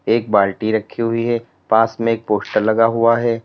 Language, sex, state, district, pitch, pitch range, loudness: Hindi, male, Uttar Pradesh, Lalitpur, 115 Hz, 110-115 Hz, -17 LUFS